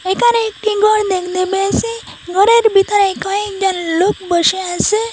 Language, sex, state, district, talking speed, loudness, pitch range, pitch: Bengali, female, Assam, Hailakandi, 130 wpm, -14 LUFS, 370-430 Hz, 395 Hz